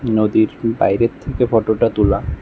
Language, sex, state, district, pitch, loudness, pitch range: Bengali, male, Tripura, West Tripura, 115 Hz, -17 LUFS, 110-115 Hz